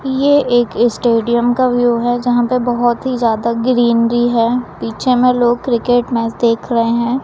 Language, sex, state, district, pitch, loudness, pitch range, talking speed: Hindi, female, Chhattisgarh, Raipur, 240 Hz, -14 LUFS, 235-250 Hz, 175 wpm